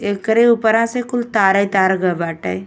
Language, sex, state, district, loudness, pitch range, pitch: Bhojpuri, female, Uttar Pradesh, Ghazipur, -16 LUFS, 190-230 Hz, 205 Hz